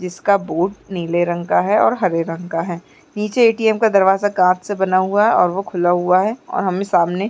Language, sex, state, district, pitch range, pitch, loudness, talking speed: Hindi, female, Uttarakhand, Uttarkashi, 175-205 Hz, 185 Hz, -17 LUFS, 240 wpm